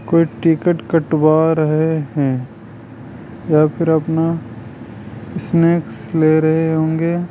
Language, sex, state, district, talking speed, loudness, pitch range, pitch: Hindi, male, Rajasthan, Jaipur, 100 wpm, -16 LUFS, 120-165 Hz, 155 Hz